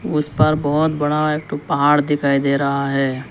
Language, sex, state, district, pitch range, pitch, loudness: Hindi, male, Arunachal Pradesh, Lower Dibang Valley, 140-150 Hz, 145 Hz, -18 LUFS